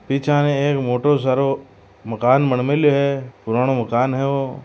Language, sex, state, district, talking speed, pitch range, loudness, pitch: Marwari, male, Rajasthan, Churu, 195 wpm, 125-140 Hz, -19 LUFS, 135 Hz